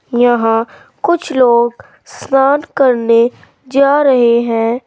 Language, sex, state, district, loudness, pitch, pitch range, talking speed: Hindi, female, Uttar Pradesh, Saharanpur, -12 LUFS, 245 Hz, 235-270 Hz, 100 wpm